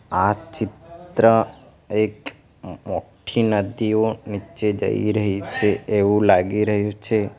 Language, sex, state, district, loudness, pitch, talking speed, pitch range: Gujarati, male, Gujarat, Valsad, -21 LUFS, 105 Hz, 105 wpm, 100-110 Hz